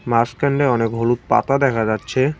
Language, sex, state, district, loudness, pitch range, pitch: Bengali, male, West Bengal, Cooch Behar, -18 LUFS, 115-140 Hz, 120 Hz